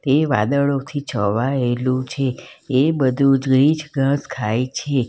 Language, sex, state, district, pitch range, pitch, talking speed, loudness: Gujarati, female, Gujarat, Valsad, 130-140 Hz, 135 Hz, 120 wpm, -19 LUFS